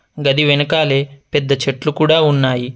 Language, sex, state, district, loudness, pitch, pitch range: Telugu, male, Telangana, Adilabad, -15 LUFS, 140 Hz, 135-150 Hz